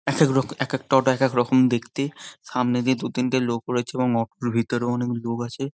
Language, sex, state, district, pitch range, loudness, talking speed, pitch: Bengali, male, West Bengal, Jhargram, 120-135 Hz, -23 LUFS, 195 wpm, 125 Hz